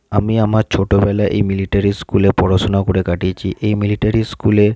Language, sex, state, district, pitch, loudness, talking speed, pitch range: Bengali, male, West Bengal, Jhargram, 100 Hz, -16 LUFS, 190 wpm, 95-105 Hz